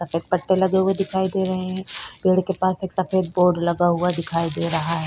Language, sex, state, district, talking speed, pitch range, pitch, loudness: Hindi, female, Chhattisgarh, Korba, 235 wpm, 170-190 Hz, 185 Hz, -21 LUFS